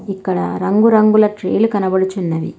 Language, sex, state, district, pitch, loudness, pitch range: Telugu, female, Telangana, Hyderabad, 195 Hz, -15 LUFS, 185-215 Hz